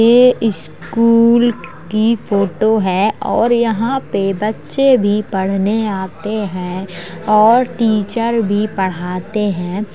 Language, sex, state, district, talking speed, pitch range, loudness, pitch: Hindi, female, Uttar Pradesh, Jalaun, 110 wpm, 190-230 Hz, -15 LUFS, 210 Hz